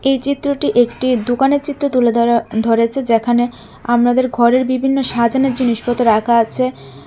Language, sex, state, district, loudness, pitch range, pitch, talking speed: Bengali, female, Tripura, West Tripura, -15 LUFS, 235-265 Hz, 245 Hz, 135 wpm